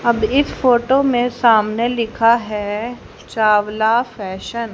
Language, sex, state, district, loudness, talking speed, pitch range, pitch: Hindi, female, Haryana, Rohtak, -17 LUFS, 125 wpm, 215-245 Hz, 230 Hz